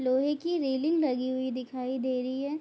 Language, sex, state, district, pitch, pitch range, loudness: Hindi, female, Bihar, Bhagalpur, 260 Hz, 255-290 Hz, -30 LUFS